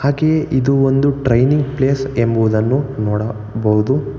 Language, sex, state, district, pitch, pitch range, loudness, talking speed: Kannada, male, Karnataka, Bangalore, 135 Hz, 110-140 Hz, -16 LUFS, 115 wpm